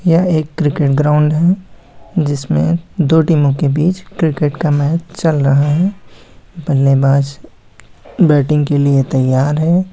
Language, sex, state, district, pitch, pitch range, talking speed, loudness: Hindi, female, Bihar, Muzaffarpur, 150 Hz, 140-165 Hz, 135 wpm, -14 LUFS